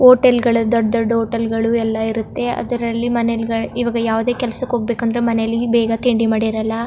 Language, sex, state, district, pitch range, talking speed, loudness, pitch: Kannada, female, Karnataka, Chamarajanagar, 225-240 Hz, 175 wpm, -17 LUFS, 230 Hz